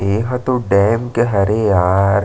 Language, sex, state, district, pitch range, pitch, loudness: Chhattisgarhi, male, Chhattisgarh, Sarguja, 100-120 Hz, 105 Hz, -15 LUFS